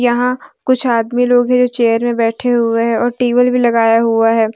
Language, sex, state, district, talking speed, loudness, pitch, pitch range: Hindi, female, Jharkhand, Deoghar, 225 wpm, -13 LUFS, 240 Hz, 230-250 Hz